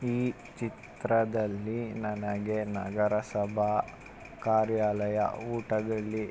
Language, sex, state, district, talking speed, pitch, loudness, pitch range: Kannada, male, Karnataka, Mysore, 65 wpm, 110 Hz, -31 LUFS, 105-115 Hz